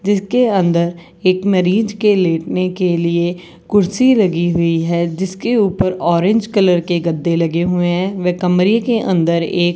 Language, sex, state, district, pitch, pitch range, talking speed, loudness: Hindi, female, Rajasthan, Bikaner, 180 Hz, 170-200 Hz, 165 wpm, -15 LUFS